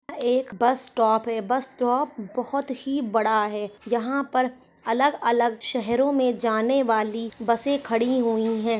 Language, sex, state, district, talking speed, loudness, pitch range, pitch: Hindi, female, Rajasthan, Churu, 150 wpm, -24 LUFS, 225-260 Hz, 240 Hz